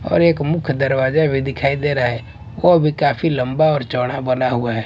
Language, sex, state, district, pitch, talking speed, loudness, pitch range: Hindi, male, Maharashtra, Washim, 135 Hz, 220 wpm, -17 LUFS, 125-155 Hz